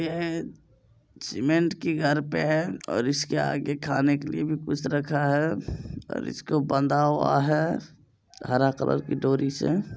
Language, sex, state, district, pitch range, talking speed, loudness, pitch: Maithili, male, Bihar, Supaul, 135-155 Hz, 160 wpm, -26 LUFS, 145 Hz